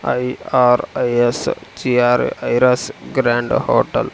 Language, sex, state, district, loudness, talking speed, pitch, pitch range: Telugu, male, Andhra Pradesh, Sri Satya Sai, -17 LUFS, 130 wpm, 125 Hz, 120-125 Hz